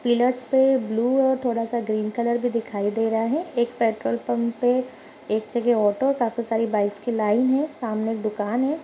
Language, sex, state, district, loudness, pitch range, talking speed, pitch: Hindi, female, Chhattisgarh, Rajnandgaon, -23 LUFS, 220-250 Hz, 195 wpm, 235 Hz